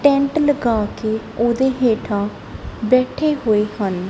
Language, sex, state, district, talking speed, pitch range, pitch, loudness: Punjabi, female, Punjab, Kapurthala, 115 wpm, 210-265 Hz, 235 Hz, -19 LUFS